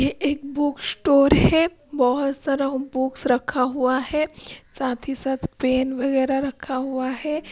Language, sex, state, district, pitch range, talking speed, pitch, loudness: Hindi, female, Punjab, Pathankot, 260-285 Hz, 145 wpm, 270 Hz, -22 LUFS